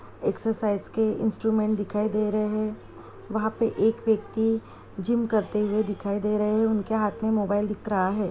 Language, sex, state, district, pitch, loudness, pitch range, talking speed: Hindi, female, Uttar Pradesh, Jyotiba Phule Nagar, 215 Hz, -26 LUFS, 210-220 Hz, 180 wpm